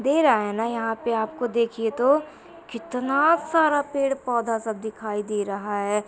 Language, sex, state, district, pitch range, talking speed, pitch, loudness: Hindi, female, Uttar Pradesh, Muzaffarnagar, 220-280 Hz, 175 wpm, 235 Hz, -24 LUFS